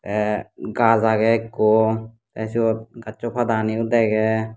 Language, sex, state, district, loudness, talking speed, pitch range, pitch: Chakma, male, Tripura, Dhalai, -20 LUFS, 120 wpm, 110-115 Hz, 110 Hz